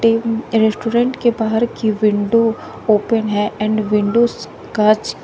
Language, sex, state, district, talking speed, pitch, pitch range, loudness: Hindi, female, Uttar Pradesh, Shamli, 115 wpm, 220 Hz, 210-230 Hz, -17 LUFS